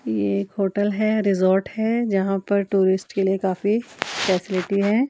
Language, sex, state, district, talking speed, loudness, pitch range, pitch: Hindi, female, Himachal Pradesh, Shimla, 165 wpm, -22 LUFS, 190-210 Hz, 195 Hz